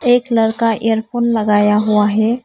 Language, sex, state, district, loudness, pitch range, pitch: Hindi, female, Arunachal Pradesh, Papum Pare, -15 LUFS, 215-235 Hz, 225 Hz